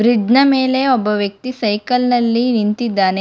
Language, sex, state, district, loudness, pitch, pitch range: Kannada, female, Karnataka, Bangalore, -15 LUFS, 235 Hz, 210-255 Hz